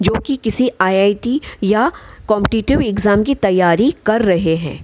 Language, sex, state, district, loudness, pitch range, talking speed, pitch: Hindi, female, Bihar, Gaya, -15 LUFS, 190-245 Hz, 125 wpm, 210 Hz